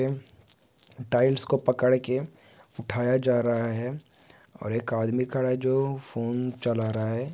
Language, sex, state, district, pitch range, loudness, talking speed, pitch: Hindi, male, Uttar Pradesh, Varanasi, 115-130 Hz, -27 LUFS, 145 wpm, 125 Hz